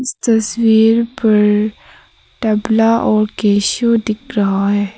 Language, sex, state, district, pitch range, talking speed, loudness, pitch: Hindi, female, Arunachal Pradesh, Papum Pare, 210-230 Hz, 110 wpm, -14 LUFS, 220 Hz